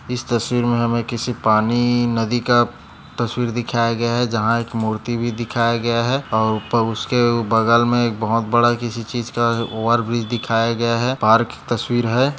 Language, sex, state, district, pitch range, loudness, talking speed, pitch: Hindi, male, Maharashtra, Nagpur, 115-120 Hz, -19 LUFS, 190 wpm, 120 Hz